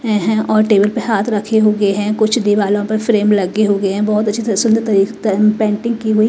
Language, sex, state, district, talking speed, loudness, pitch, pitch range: Hindi, female, Bihar, West Champaran, 220 wpm, -14 LUFS, 215 Hz, 205-220 Hz